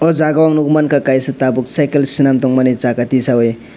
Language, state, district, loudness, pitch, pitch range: Kokborok, Tripura, West Tripura, -13 LUFS, 135 Hz, 130-150 Hz